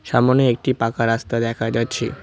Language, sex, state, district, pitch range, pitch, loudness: Bengali, male, West Bengal, Cooch Behar, 115-125 Hz, 115 Hz, -19 LUFS